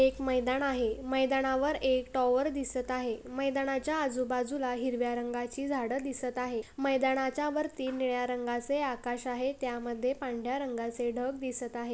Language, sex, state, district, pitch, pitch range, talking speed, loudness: Marathi, female, Maharashtra, Pune, 255 Hz, 245-270 Hz, 135 wpm, -32 LUFS